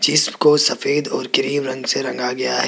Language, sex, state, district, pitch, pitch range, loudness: Hindi, male, Rajasthan, Jaipur, 135 Hz, 125-145 Hz, -18 LUFS